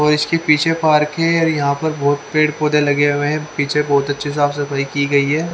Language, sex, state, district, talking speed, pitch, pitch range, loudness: Hindi, male, Haryana, Charkhi Dadri, 240 wpm, 150 Hz, 145-155 Hz, -16 LUFS